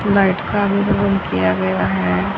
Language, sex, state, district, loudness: Hindi, female, Haryana, Charkhi Dadri, -17 LUFS